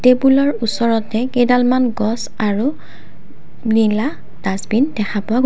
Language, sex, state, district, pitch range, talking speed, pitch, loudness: Assamese, female, Assam, Kamrup Metropolitan, 215-250 Hz, 110 wpm, 230 Hz, -17 LUFS